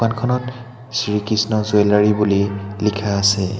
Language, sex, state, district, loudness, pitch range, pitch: Assamese, male, Assam, Hailakandi, -18 LUFS, 100-115 Hz, 105 Hz